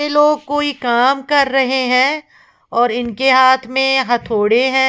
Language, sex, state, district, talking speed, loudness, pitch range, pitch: Hindi, female, Uttar Pradesh, Lalitpur, 160 wpm, -14 LUFS, 245-280 Hz, 265 Hz